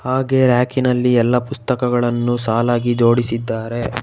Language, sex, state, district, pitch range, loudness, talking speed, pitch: Kannada, male, Karnataka, Bangalore, 120-125 Hz, -17 LUFS, 90 wpm, 120 Hz